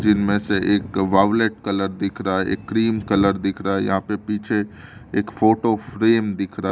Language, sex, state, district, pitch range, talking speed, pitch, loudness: Hindi, male, Delhi, New Delhi, 95-110 Hz, 195 wpm, 105 Hz, -20 LUFS